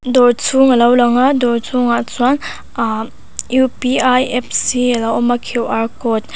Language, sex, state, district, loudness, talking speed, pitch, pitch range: Mizo, female, Mizoram, Aizawl, -14 LUFS, 170 wpm, 245 Hz, 235-255 Hz